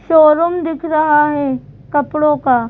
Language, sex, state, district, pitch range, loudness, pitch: Hindi, female, Madhya Pradesh, Bhopal, 290-315 Hz, -14 LUFS, 300 Hz